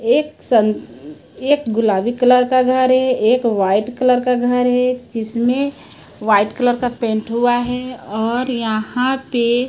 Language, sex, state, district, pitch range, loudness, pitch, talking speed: Hindi, male, Chhattisgarh, Raipur, 225-255 Hz, -17 LUFS, 245 Hz, 155 wpm